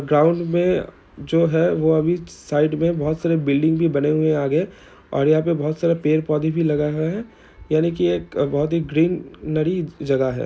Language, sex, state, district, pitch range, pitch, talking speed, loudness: Hindi, male, Bihar, Saran, 150-170 Hz, 155 Hz, 200 wpm, -20 LUFS